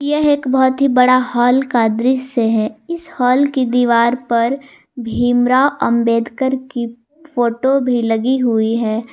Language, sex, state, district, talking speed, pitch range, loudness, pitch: Hindi, female, Jharkhand, Garhwa, 145 wpm, 235-265 Hz, -15 LUFS, 250 Hz